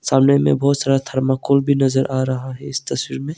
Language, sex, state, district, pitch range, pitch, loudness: Hindi, male, Arunachal Pradesh, Longding, 130-140 Hz, 135 Hz, -18 LUFS